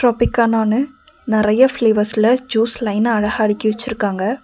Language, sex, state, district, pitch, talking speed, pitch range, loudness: Tamil, female, Tamil Nadu, Nilgiris, 225 Hz, 110 wpm, 215-245 Hz, -16 LUFS